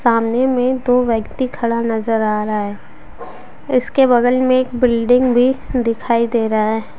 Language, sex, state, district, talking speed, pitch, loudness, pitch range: Hindi, female, Jharkhand, Deoghar, 165 wpm, 240 Hz, -16 LUFS, 225-255 Hz